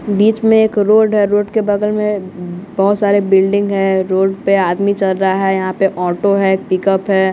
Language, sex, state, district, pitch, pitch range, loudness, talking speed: Hindi, male, Bihar, West Champaran, 195 Hz, 190-205 Hz, -14 LUFS, 205 wpm